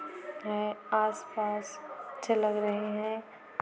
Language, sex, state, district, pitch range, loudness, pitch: Hindi, female, Chhattisgarh, Korba, 210-305 Hz, -33 LUFS, 215 Hz